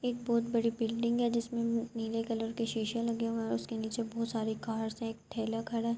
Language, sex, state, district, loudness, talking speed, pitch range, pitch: Urdu, female, Andhra Pradesh, Anantapur, -34 LUFS, 220 wpm, 225-235 Hz, 230 Hz